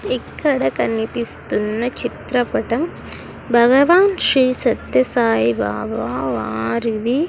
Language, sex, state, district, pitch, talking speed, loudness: Telugu, female, Andhra Pradesh, Sri Satya Sai, 225 Hz, 80 wpm, -18 LUFS